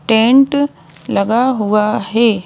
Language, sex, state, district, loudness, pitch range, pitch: Hindi, female, Madhya Pradesh, Bhopal, -14 LUFS, 210-255 Hz, 225 Hz